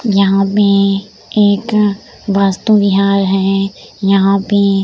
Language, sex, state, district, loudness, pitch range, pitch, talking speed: Hindi, female, Bihar, Samastipur, -13 LUFS, 195-205 Hz, 200 Hz, 110 wpm